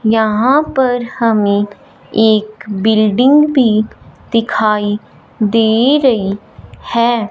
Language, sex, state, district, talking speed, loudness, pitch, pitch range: Hindi, female, Punjab, Fazilka, 80 wpm, -13 LUFS, 220 Hz, 215-245 Hz